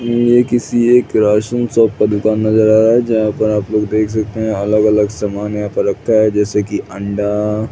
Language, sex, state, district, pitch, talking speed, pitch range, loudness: Hindi, male, Chhattisgarh, Bilaspur, 110 Hz, 235 wpm, 105-115 Hz, -14 LUFS